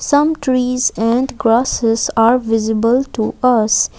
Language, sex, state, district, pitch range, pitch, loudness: English, female, Assam, Kamrup Metropolitan, 225-255 Hz, 240 Hz, -15 LUFS